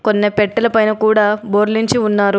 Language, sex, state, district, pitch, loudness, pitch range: Telugu, female, Telangana, Adilabad, 215 Hz, -14 LUFS, 210-220 Hz